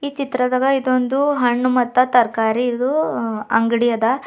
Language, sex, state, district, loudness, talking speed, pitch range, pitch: Kannada, female, Karnataka, Bidar, -18 LUFS, 110 wpm, 235-270 Hz, 250 Hz